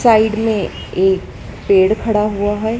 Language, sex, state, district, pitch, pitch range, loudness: Hindi, female, Madhya Pradesh, Dhar, 210 Hz, 200-220 Hz, -16 LUFS